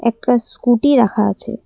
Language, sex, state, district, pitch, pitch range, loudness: Bengali, female, Assam, Kamrup Metropolitan, 235 Hz, 220-250 Hz, -15 LUFS